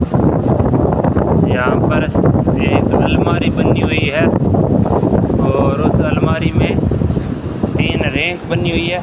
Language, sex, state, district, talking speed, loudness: Hindi, male, Rajasthan, Bikaner, 105 wpm, -14 LUFS